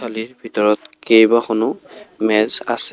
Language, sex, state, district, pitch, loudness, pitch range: Assamese, male, Assam, Kamrup Metropolitan, 110 Hz, -16 LUFS, 110-115 Hz